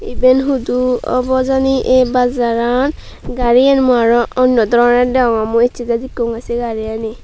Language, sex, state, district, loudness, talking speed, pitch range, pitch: Chakma, female, Tripura, Unakoti, -14 LUFS, 140 wpm, 235-255 Hz, 245 Hz